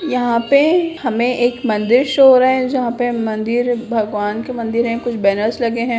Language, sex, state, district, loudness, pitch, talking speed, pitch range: Hindi, female, Bihar, Begusarai, -16 LUFS, 240 Hz, 210 wpm, 230-255 Hz